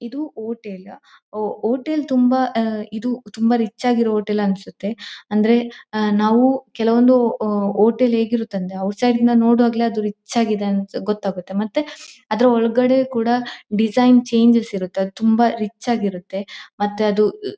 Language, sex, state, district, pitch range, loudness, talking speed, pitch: Kannada, female, Karnataka, Dakshina Kannada, 210-245 Hz, -19 LUFS, 145 wpm, 230 Hz